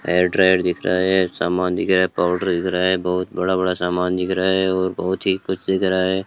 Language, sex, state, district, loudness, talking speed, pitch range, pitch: Hindi, male, Rajasthan, Bikaner, -19 LUFS, 260 wpm, 90-95 Hz, 95 Hz